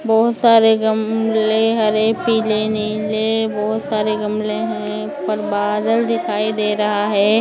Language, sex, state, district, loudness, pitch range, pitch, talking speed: Hindi, female, Maharashtra, Mumbai Suburban, -17 LUFS, 210-225 Hz, 215 Hz, 135 wpm